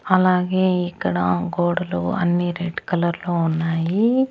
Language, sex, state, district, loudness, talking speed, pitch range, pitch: Telugu, female, Andhra Pradesh, Annamaya, -21 LUFS, 95 wpm, 165-185 Hz, 175 Hz